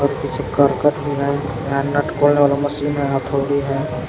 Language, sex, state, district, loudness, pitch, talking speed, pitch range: Hindi, male, Jharkhand, Palamu, -19 LUFS, 140 Hz, 175 wpm, 140-145 Hz